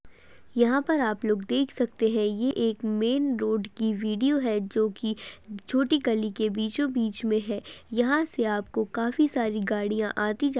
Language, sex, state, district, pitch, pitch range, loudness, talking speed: Hindi, female, Uttar Pradesh, Hamirpur, 225 Hz, 215-250 Hz, -27 LUFS, 180 wpm